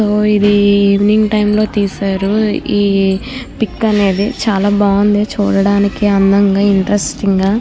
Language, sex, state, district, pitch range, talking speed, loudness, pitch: Telugu, female, Andhra Pradesh, Krishna, 200-210 Hz, 110 wpm, -13 LUFS, 205 Hz